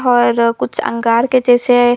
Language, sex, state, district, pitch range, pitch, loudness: Hindi, female, Chhattisgarh, Bilaspur, 235-245 Hz, 245 Hz, -13 LUFS